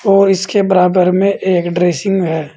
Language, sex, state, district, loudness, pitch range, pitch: Hindi, male, Uttar Pradesh, Saharanpur, -13 LUFS, 175-195 Hz, 185 Hz